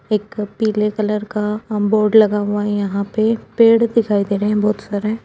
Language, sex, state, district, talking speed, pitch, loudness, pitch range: Hindi, female, Uttar Pradesh, Jalaun, 205 wpm, 210 Hz, -17 LUFS, 205-220 Hz